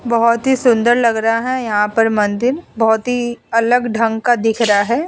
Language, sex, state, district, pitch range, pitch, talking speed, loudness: Hindi, female, Uttar Pradesh, Budaun, 225-245 Hz, 230 Hz, 200 wpm, -15 LUFS